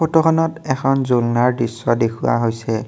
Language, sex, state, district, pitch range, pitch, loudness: Assamese, male, Assam, Kamrup Metropolitan, 115-155 Hz, 125 Hz, -18 LUFS